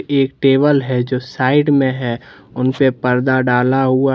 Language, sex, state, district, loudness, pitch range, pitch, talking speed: Hindi, male, Jharkhand, Deoghar, -15 LUFS, 125-135 Hz, 130 Hz, 160 wpm